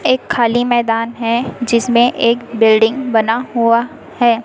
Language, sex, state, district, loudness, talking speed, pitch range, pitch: Hindi, female, Chhattisgarh, Raipur, -14 LUFS, 135 wpm, 230-245 Hz, 235 Hz